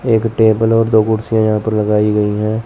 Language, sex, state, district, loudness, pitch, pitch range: Hindi, male, Chandigarh, Chandigarh, -14 LUFS, 110 Hz, 105-110 Hz